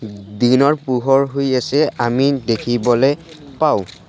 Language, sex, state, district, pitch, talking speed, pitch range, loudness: Assamese, male, Assam, Sonitpur, 135 Hz, 100 wpm, 120-140 Hz, -17 LUFS